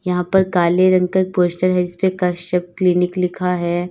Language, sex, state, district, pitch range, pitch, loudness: Hindi, female, Uttar Pradesh, Lalitpur, 180-185 Hz, 180 Hz, -17 LUFS